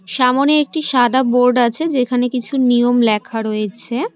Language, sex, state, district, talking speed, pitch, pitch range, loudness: Bengali, female, West Bengal, Cooch Behar, 145 wpm, 250 Hz, 235-265 Hz, -16 LUFS